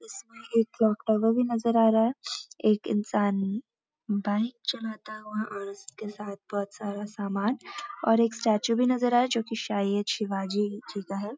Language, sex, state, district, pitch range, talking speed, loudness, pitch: Hindi, female, Uttarakhand, Uttarkashi, 205-230 Hz, 190 wpm, -28 LUFS, 220 Hz